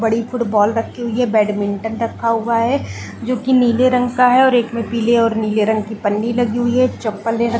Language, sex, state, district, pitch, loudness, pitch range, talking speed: Hindi, female, Chhattisgarh, Balrampur, 230 Hz, -17 LUFS, 220-245 Hz, 230 wpm